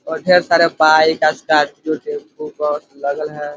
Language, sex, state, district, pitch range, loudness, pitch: Hindi, male, Chhattisgarh, Korba, 150-160 Hz, -16 LUFS, 155 Hz